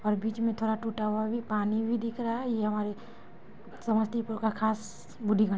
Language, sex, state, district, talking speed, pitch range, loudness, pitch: Maithili, female, Bihar, Samastipur, 195 wpm, 210-230 Hz, -31 LUFS, 220 Hz